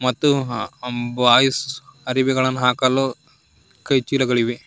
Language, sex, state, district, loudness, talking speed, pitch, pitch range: Kannada, male, Karnataka, Koppal, -19 LUFS, 105 wpm, 130 Hz, 125-135 Hz